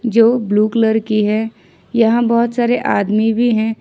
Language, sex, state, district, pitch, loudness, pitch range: Hindi, female, Jharkhand, Ranchi, 225 Hz, -15 LUFS, 220-235 Hz